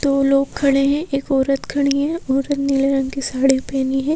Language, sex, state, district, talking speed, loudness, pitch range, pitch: Hindi, female, Madhya Pradesh, Bhopal, 230 wpm, -18 LUFS, 270-280 Hz, 275 Hz